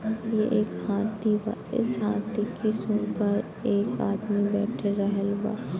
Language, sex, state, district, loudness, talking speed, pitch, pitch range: Bhojpuri, female, Bihar, Gopalganj, -27 LUFS, 165 wpm, 210 Hz, 205-220 Hz